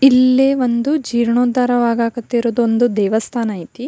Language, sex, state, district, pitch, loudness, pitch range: Kannada, female, Karnataka, Belgaum, 240 Hz, -16 LUFS, 235-255 Hz